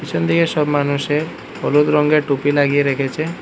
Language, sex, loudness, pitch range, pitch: Bengali, male, -17 LUFS, 140-150 Hz, 145 Hz